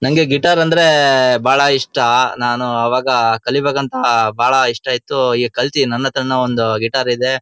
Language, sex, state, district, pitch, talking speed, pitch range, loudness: Kannada, male, Karnataka, Shimoga, 130 Hz, 160 wpm, 120-140 Hz, -14 LUFS